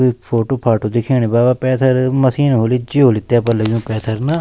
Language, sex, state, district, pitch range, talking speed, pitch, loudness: Garhwali, male, Uttarakhand, Tehri Garhwal, 115-130 Hz, 190 wpm, 120 Hz, -15 LUFS